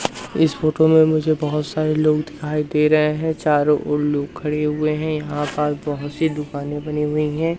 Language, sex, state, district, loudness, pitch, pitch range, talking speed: Hindi, male, Madhya Pradesh, Umaria, -20 LUFS, 150 Hz, 150-155 Hz, 195 wpm